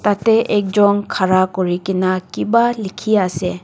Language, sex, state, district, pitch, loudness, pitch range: Nagamese, female, Nagaland, Dimapur, 195 Hz, -16 LUFS, 185-210 Hz